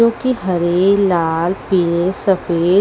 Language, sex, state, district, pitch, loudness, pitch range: Hindi, female, Haryana, Rohtak, 185 Hz, -16 LUFS, 175-200 Hz